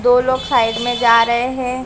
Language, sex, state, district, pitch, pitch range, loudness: Hindi, female, Maharashtra, Mumbai Suburban, 245 Hz, 235-255 Hz, -15 LUFS